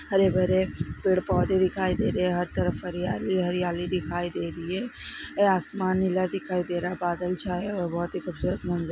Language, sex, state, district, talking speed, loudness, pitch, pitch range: Hindi, female, Bihar, Darbhanga, 210 wpm, -27 LUFS, 180 Hz, 175-185 Hz